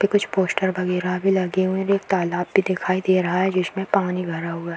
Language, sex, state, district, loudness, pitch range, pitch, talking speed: Hindi, female, Bihar, Darbhanga, -22 LUFS, 180-190 Hz, 185 Hz, 265 wpm